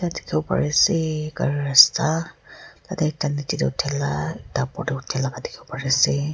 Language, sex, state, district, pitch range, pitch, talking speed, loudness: Nagamese, female, Nagaland, Kohima, 135-155 Hz, 145 Hz, 115 wpm, -21 LUFS